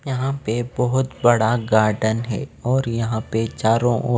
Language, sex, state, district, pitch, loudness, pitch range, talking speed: Hindi, male, Bihar, Patna, 120 Hz, -20 LUFS, 110-125 Hz, 160 wpm